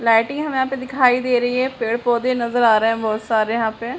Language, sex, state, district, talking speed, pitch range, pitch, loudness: Hindi, female, Bihar, Purnia, 255 wpm, 225-255 Hz, 240 Hz, -19 LUFS